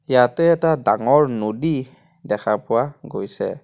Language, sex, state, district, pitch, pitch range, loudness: Assamese, male, Assam, Kamrup Metropolitan, 135 Hz, 115-160 Hz, -20 LUFS